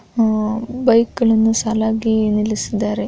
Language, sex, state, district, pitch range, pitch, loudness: Kannada, female, Karnataka, Bellary, 215-230 Hz, 220 Hz, -17 LUFS